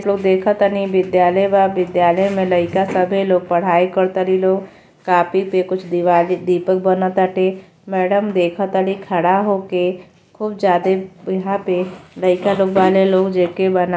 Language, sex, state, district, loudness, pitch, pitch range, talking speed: Bhojpuri, female, Uttar Pradesh, Gorakhpur, -17 LUFS, 185 Hz, 180-195 Hz, 140 wpm